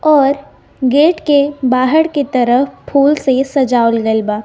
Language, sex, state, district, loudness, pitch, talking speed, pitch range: Hindi, female, Bihar, West Champaran, -13 LUFS, 275 Hz, 120 wpm, 250-290 Hz